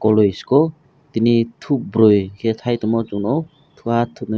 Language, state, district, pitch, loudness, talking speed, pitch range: Kokborok, Tripura, West Tripura, 115 Hz, -18 LUFS, 110 wpm, 110-140 Hz